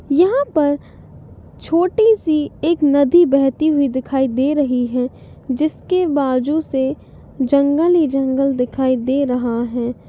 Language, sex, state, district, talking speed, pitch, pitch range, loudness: Hindi, female, Bihar, East Champaran, 130 wpm, 280 Hz, 260-310 Hz, -17 LUFS